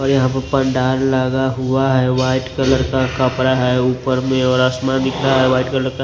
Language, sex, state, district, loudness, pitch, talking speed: Hindi, male, Maharashtra, Washim, -16 LUFS, 130 Hz, 220 wpm